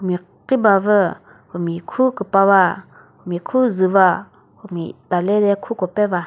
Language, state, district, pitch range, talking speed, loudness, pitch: Chakhesang, Nagaland, Dimapur, 180-210 Hz, 135 wpm, -18 LUFS, 195 Hz